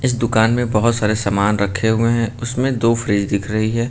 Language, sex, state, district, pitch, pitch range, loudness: Hindi, male, Uttar Pradesh, Lucknow, 115 Hz, 105-115 Hz, -17 LUFS